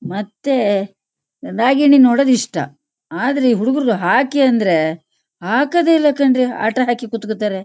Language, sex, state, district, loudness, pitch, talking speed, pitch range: Kannada, female, Karnataka, Shimoga, -15 LUFS, 235 Hz, 120 wpm, 195-270 Hz